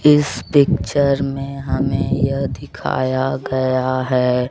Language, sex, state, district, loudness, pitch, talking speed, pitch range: Hindi, male, Bihar, Kaimur, -18 LUFS, 130 Hz, 105 wpm, 130-140 Hz